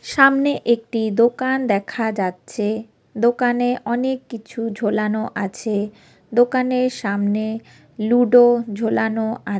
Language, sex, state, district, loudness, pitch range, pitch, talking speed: Bengali, female, West Bengal, North 24 Parganas, -19 LUFS, 215-245 Hz, 230 Hz, 100 wpm